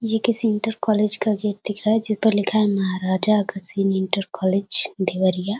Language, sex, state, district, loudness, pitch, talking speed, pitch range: Hindi, female, Uttar Pradesh, Deoria, -20 LUFS, 205 Hz, 195 wpm, 190-215 Hz